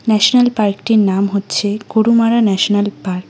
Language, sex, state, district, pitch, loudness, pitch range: Bengali, female, West Bengal, Cooch Behar, 210 Hz, -14 LUFS, 200-225 Hz